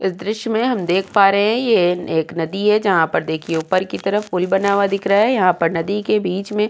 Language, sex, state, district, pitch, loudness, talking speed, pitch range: Hindi, female, Uttar Pradesh, Jyotiba Phule Nagar, 195 Hz, -17 LUFS, 280 wpm, 180-210 Hz